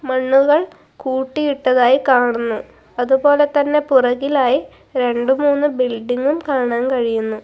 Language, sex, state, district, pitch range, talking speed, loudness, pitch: Malayalam, female, Kerala, Kasaragod, 245-285 Hz, 75 wpm, -16 LUFS, 265 Hz